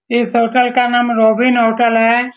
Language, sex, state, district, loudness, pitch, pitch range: Hindi, male, Bihar, Saran, -13 LUFS, 240 Hz, 230-245 Hz